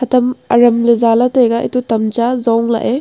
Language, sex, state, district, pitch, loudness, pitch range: Wancho, female, Arunachal Pradesh, Longding, 235 Hz, -13 LUFS, 230-250 Hz